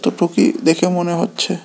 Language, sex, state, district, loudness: Bengali, male, Tripura, West Tripura, -16 LUFS